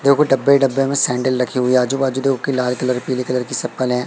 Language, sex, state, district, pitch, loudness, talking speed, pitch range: Hindi, male, Madhya Pradesh, Katni, 130 Hz, -17 LUFS, 280 wpm, 125-135 Hz